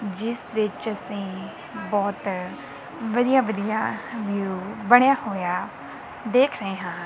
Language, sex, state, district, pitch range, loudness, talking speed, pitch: Punjabi, female, Punjab, Kapurthala, 190-230 Hz, -24 LUFS, 100 wpm, 205 Hz